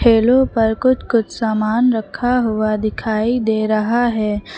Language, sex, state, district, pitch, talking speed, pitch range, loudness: Hindi, female, Uttar Pradesh, Lucknow, 225 Hz, 145 wpm, 215-245 Hz, -17 LUFS